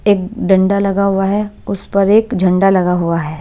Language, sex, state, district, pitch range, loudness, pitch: Hindi, female, Punjab, Pathankot, 185-200 Hz, -14 LUFS, 195 Hz